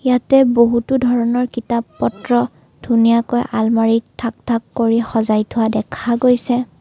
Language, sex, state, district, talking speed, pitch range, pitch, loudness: Assamese, female, Assam, Kamrup Metropolitan, 125 wpm, 225-245 Hz, 235 Hz, -16 LUFS